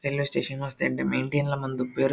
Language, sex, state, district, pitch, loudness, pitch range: Tulu, male, Karnataka, Dakshina Kannada, 135 Hz, -27 LUFS, 125-140 Hz